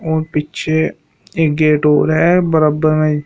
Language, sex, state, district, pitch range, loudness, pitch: Hindi, male, Uttar Pradesh, Shamli, 150-160 Hz, -14 LUFS, 155 Hz